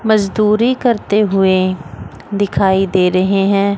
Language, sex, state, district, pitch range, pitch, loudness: Hindi, female, Chandigarh, Chandigarh, 185-210 Hz, 195 Hz, -14 LUFS